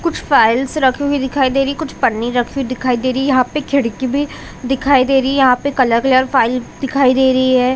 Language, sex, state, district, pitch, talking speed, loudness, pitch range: Hindi, female, Chhattisgarh, Bilaspur, 265 Hz, 245 wpm, -15 LUFS, 255-275 Hz